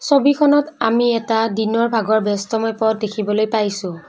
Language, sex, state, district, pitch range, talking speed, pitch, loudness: Assamese, female, Assam, Kamrup Metropolitan, 215-235 Hz, 130 wpm, 225 Hz, -18 LUFS